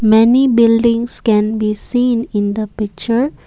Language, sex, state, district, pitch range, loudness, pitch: English, female, Assam, Kamrup Metropolitan, 215-240 Hz, -14 LUFS, 230 Hz